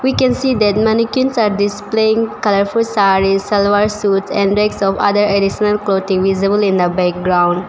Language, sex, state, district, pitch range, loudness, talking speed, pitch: English, female, Arunachal Pradesh, Papum Pare, 195-215 Hz, -14 LUFS, 165 wpm, 205 Hz